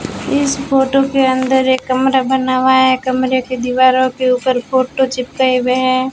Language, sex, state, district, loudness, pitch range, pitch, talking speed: Hindi, female, Rajasthan, Bikaner, -14 LUFS, 255-265 Hz, 260 Hz, 175 wpm